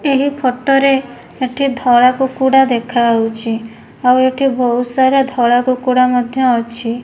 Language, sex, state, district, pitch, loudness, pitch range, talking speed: Odia, female, Odisha, Nuapada, 255 Hz, -14 LUFS, 240-265 Hz, 130 wpm